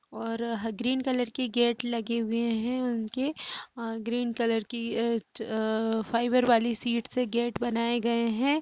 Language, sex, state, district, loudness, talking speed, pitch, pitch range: Hindi, female, Uttar Pradesh, Jalaun, -29 LUFS, 155 wpm, 235 Hz, 230-245 Hz